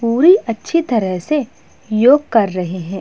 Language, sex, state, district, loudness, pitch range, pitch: Hindi, female, Uttar Pradesh, Budaun, -15 LUFS, 195-290 Hz, 230 Hz